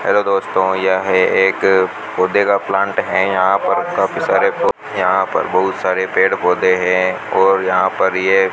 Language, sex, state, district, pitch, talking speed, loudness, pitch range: Hindi, male, Rajasthan, Bikaner, 95 Hz, 170 wpm, -15 LUFS, 95-100 Hz